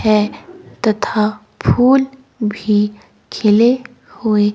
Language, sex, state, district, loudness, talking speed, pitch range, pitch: Hindi, female, Himachal Pradesh, Shimla, -16 LUFS, 80 wpm, 210-245 Hz, 215 Hz